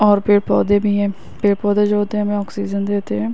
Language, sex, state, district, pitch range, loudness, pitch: Hindi, female, Uttar Pradesh, Varanasi, 200-205 Hz, -18 LUFS, 205 Hz